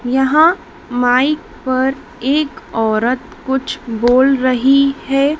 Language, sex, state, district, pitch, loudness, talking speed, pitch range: Hindi, female, Madhya Pradesh, Dhar, 265 Hz, -15 LUFS, 100 wpm, 250-280 Hz